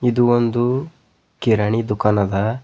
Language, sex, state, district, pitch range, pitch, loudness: Kannada, male, Karnataka, Bidar, 105-120 Hz, 115 Hz, -18 LUFS